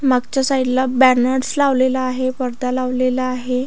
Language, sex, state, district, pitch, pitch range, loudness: Marathi, female, Maharashtra, Aurangabad, 255 Hz, 255-260 Hz, -17 LUFS